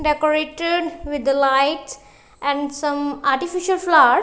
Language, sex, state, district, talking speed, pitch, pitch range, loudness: English, female, Punjab, Kapurthala, 115 wpm, 295 Hz, 280-325 Hz, -20 LUFS